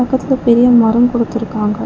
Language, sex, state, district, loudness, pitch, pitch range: Tamil, female, Tamil Nadu, Chennai, -13 LUFS, 235 Hz, 225-245 Hz